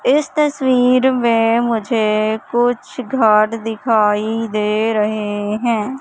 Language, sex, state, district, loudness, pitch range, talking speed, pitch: Hindi, male, Madhya Pradesh, Katni, -16 LUFS, 215-245 Hz, 100 wpm, 225 Hz